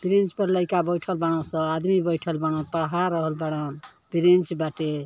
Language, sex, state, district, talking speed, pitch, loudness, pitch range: Bhojpuri, female, Uttar Pradesh, Ghazipur, 140 wpm, 165 Hz, -24 LUFS, 160-180 Hz